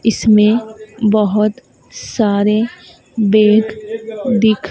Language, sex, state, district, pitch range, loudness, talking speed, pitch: Hindi, female, Madhya Pradesh, Dhar, 210-225 Hz, -14 LUFS, 65 wpm, 215 Hz